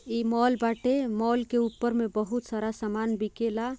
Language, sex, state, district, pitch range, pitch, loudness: Bhojpuri, female, Bihar, Gopalganj, 220-240 Hz, 230 Hz, -28 LUFS